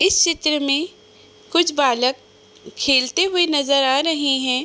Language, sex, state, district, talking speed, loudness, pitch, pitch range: Hindi, female, Uttar Pradesh, Budaun, 155 wpm, -18 LUFS, 290 Hz, 265-340 Hz